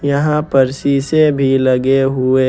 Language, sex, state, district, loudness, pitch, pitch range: Hindi, male, Jharkhand, Ranchi, -14 LUFS, 135 Hz, 130-140 Hz